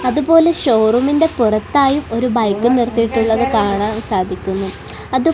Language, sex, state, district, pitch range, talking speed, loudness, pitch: Malayalam, female, Kerala, Kasaragod, 215-270 Hz, 100 wpm, -15 LUFS, 230 Hz